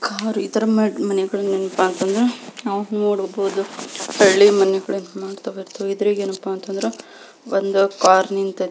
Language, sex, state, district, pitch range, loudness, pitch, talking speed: Kannada, female, Karnataka, Belgaum, 195-210 Hz, -19 LUFS, 195 Hz, 105 wpm